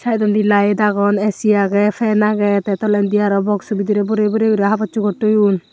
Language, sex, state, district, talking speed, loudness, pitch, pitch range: Chakma, female, Tripura, Unakoti, 170 wpm, -16 LUFS, 210 Hz, 205-215 Hz